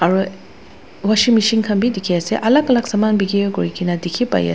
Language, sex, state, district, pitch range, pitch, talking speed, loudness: Nagamese, female, Nagaland, Dimapur, 180-225 Hz, 205 Hz, 210 wpm, -17 LUFS